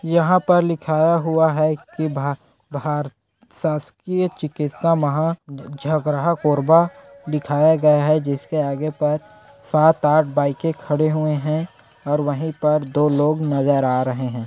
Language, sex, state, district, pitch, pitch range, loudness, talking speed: Hindi, male, Chhattisgarh, Korba, 150 Hz, 145-160 Hz, -19 LUFS, 140 wpm